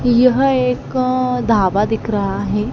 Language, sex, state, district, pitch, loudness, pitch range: Hindi, female, Madhya Pradesh, Dhar, 240 Hz, -16 LUFS, 205-255 Hz